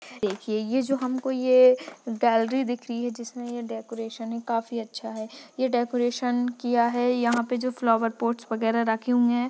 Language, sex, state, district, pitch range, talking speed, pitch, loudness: Hindi, female, Chhattisgarh, Bastar, 230-250 Hz, 185 wpm, 240 Hz, -25 LUFS